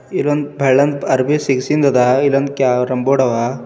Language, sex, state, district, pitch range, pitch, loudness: Kannada, male, Karnataka, Bidar, 130-140 Hz, 135 Hz, -15 LUFS